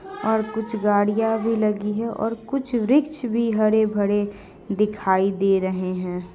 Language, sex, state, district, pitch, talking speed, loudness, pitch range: Hindi, female, Bihar, Purnia, 215 Hz, 140 wpm, -22 LUFS, 205-225 Hz